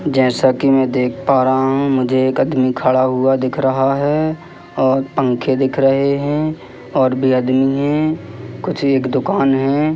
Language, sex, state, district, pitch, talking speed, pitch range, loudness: Hindi, male, Madhya Pradesh, Katni, 135 Hz, 170 wpm, 130-140 Hz, -16 LUFS